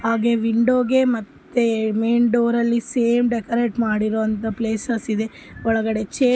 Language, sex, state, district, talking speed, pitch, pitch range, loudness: Kannada, female, Karnataka, Bellary, 130 wpm, 230 Hz, 220-235 Hz, -20 LUFS